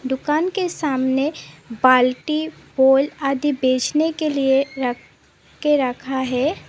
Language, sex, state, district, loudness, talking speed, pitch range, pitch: Hindi, female, Assam, Sonitpur, -20 LUFS, 115 wpm, 260-300 Hz, 270 Hz